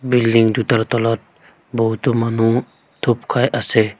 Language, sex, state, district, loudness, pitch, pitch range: Assamese, female, Assam, Sonitpur, -18 LUFS, 115 Hz, 115-120 Hz